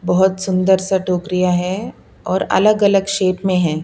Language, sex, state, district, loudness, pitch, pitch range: Hindi, female, Punjab, Pathankot, -16 LUFS, 185 Hz, 180-195 Hz